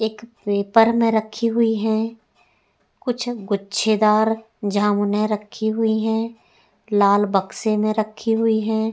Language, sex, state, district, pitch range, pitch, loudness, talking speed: Hindi, female, Uttar Pradesh, Etah, 210-225 Hz, 220 Hz, -20 LUFS, 120 wpm